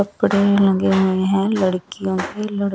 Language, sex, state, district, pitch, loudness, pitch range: Hindi, female, Chandigarh, Chandigarh, 195 Hz, -18 LUFS, 190-200 Hz